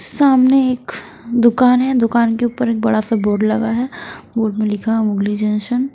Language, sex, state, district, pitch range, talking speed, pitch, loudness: Hindi, female, Odisha, Sambalpur, 215-250 Hz, 200 wpm, 230 Hz, -16 LUFS